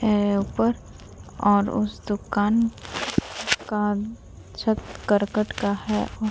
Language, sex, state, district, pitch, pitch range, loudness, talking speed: Hindi, female, Bihar, Vaishali, 210 Hz, 205-215 Hz, -24 LUFS, 95 wpm